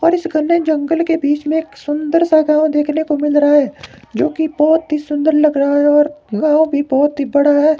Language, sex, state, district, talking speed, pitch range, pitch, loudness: Hindi, male, Himachal Pradesh, Shimla, 240 wpm, 290-315 Hz, 300 Hz, -14 LUFS